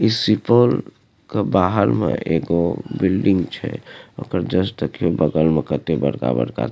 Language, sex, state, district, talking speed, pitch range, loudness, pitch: Maithili, male, Bihar, Supaul, 145 wpm, 75-100 Hz, -19 LUFS, 85 Hz